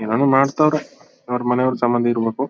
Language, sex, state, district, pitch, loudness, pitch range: Kannada, male, Karnataka, Chamarajanagar, 125 Hz, -18 LUFS, 120-135 Hz